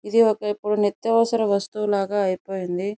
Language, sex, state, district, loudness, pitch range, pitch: Telugu, female, Andhra Pradesh, Chittoor, -22 LUFS, 195-215 Hz, 205 Hz